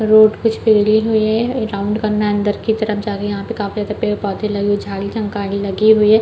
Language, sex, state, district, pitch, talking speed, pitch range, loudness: Hindi, female, Chhattisgarh, Balrampur, 210 Hz, 250 wpm, 205-220 Hz, -17 LUFS